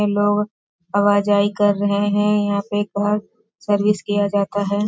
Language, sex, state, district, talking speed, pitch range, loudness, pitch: Hindi, female, Bihar, Sitamarhi, 150 wpm, 200-205 Hz, -19 LUFS, 205 Hz